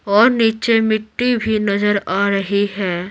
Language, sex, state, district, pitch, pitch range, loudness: Hindi, female, Bihar, Patna, 210 Hz, 200-225 Hz, -17 LUFS